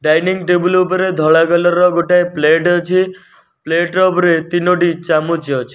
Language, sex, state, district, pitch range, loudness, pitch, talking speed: Odia, male, Odisha, Nuapada, 165-180 Hz, -13 LUFS, 175 Hz, 155 wpm